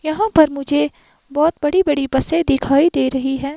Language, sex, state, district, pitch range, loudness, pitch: Hindi, female, Himachal Pradesh, Shimla, 275-315 Hz, -17 LUFS, 290 Hz